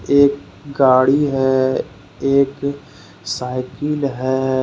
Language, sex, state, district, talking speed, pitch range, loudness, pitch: Hindi, male, Jharkhand, Deoghar, 80 wpm, 130-140 Hz, -17 LUFS, 135 Hz